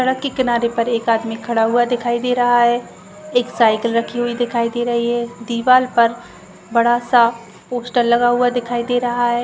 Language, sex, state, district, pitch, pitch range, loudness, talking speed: Hindi, female, Jharkhand, Jamtara, 240 Hz, 235-245 Hz, -17 LUFS, 190 wpm